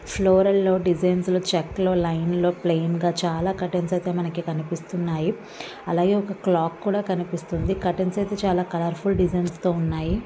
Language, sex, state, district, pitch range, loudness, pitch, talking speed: Telugu, female, Andhra Pradesh, Visakhapatnam, 170-190 Hz, -23 LUFS, 180 Hz, 135 wpm